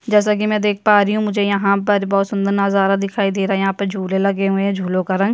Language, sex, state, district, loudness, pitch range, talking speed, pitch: Hindi, female, Chhattisgarh, Jashpur, -17 LUFS, 195-205 Hz, 305 wpm, 200 Hz